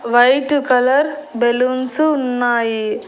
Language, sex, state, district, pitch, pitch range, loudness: Telugu, female, Andhra Pradesh, Annamaya, 255 Hz, 240-280 Hz, -16 LUFS